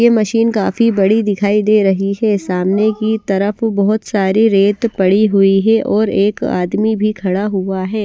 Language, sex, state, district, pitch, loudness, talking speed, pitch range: Hindi, female, Bihar, West Champaran, 210 Hz, -14 LUFS, 180 wpm, 195-220 Hz